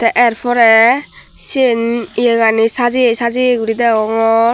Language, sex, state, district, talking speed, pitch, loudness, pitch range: Chakma, female, Tripura, Dhalai, 105 wpm, 235 Hz, -13 LUFS, 225-245 Hz